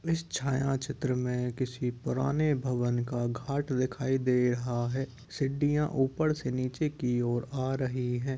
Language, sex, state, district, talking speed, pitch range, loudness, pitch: Hindi, male, Uttar Pradesh, Etah, 160 wpm, 125-140 Hz, -31 LUFS, 130 Hz